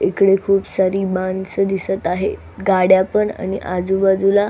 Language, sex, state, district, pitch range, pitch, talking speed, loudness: Marathi, female, Maharashtra, Solapur, 190-195 Hz, 190 Hz, 135 wpm, -17 LUFS